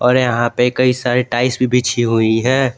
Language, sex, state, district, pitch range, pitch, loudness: Hindi, male, Jharkhand, Garhwa, 120-125 Hz, 125 Hz, -15 LUFS